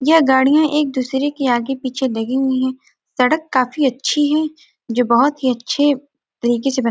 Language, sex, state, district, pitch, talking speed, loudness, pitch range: Hindi, female, Bihar, Gopalganj, 265 Hz, 190 wpm, -17 LUFS, 250-295 Hz